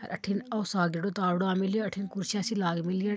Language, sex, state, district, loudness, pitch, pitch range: Marwari, female, Rajasthan, Churu, -30 LUFS, 195 Hz, 185-205 Hz